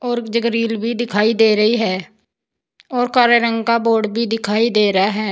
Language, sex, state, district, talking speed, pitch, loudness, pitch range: Hindi, female, Uttar Pradesh, Saharanpur, 205 wpm, 230 Hz, -16 LUFS, 215-235 Hz